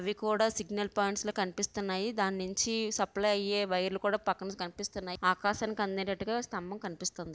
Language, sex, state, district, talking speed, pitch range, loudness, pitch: Telugu, female, Andhra Pradesh, Visakhapatnam, 140 wpm, 190-210 Hz, -33 LUFS, 200 Hz